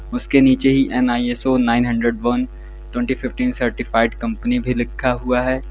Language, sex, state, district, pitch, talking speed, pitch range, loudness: Hindi, male, Uttar Pradesh, Lalitpur, 125 Hz, 145 wpm, 120-130 Hz, -18 LUFS